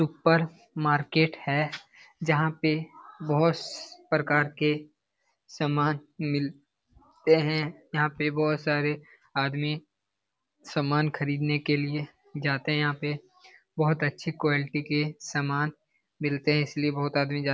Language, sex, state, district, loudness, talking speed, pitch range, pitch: Hindi, male, Bihar, Jamui, -27 LUFS, 125 wpm, 145-155 Hz, 150 Hz